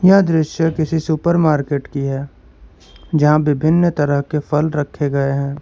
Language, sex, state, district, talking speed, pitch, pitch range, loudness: Hindi, male, Karnataka, Bangalore, 160 wpm, 150 Hz, 140-160 Hz, -17 LUFS